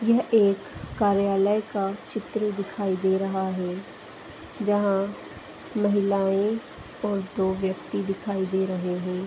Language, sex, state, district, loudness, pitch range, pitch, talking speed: Hindi, female, Uttar Pradesh, Hamirpur, -26 LUFS, 190-205 Hz, 200 Hz, 115 wpm